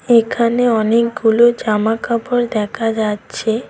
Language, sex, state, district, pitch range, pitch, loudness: Bengali, female, West Bengal, Cooch Behar, 220-240 Hz, 230 Hz, -16 LUFS